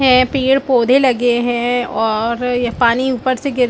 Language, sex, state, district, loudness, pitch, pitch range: Hindi, female, Chhattisgarh, Balrampur, -15 LUFS, 245 Hz, 240-260 Hz